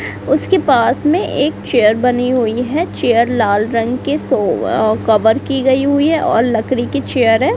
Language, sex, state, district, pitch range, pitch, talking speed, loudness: Hindi, female, Bihar, Kaimur, 230-280 Hz, 250 Hz, 190 wpm, -14 LUFS